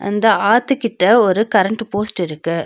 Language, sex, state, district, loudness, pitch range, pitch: Tamil, female, Tamil Nadu, Nilgiris, -15 LUFS, 190-225 Hz, 205 Hz